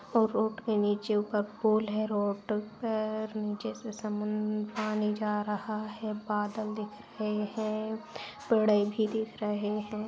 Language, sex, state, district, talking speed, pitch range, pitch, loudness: Hindi, female, Bihar, East Champaran, 150 wpm, 210-220 Hz, 215 Hz, -32 LUFS